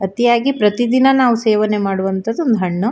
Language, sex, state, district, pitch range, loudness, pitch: Kannada, female, Karnataka, Shimoga, 195-240 Hz, -15 LUFS, 220 Hz